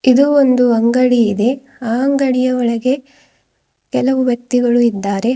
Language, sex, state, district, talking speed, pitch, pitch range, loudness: Kannada, female, Karnataka, Bidar, 110 wpm, 250 Hz, 240-265 Hz, -14 LUFS